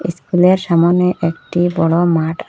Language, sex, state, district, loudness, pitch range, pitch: Bengali, female, Assam, Hailakandi, -14 LUFS, 165-180 Hz, 175 Hz